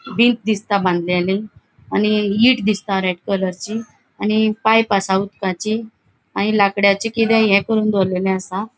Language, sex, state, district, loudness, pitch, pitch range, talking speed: Konkani, female, Goa, North and South Goa, -18 LUFS, 205 Hz, 195-220 Hz, 130 wpm